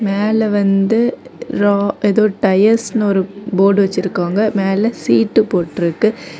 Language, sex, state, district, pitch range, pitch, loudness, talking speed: Tamil, female, Tamil Nadu, Kanyakumari, 195-215 Hz, 200 Hz, -15 LUFS, 115 wpm